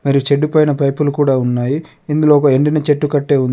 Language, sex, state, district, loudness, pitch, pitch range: Telugu, male, Telangana, Adilabad, -14 LUFS, 145 Hz, 140-150 Hz